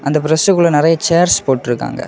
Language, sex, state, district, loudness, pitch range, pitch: Tamil, male, Tamil Nadu, Kanyakumari, -13 LUFS, 140-170 Hz, 160 Hz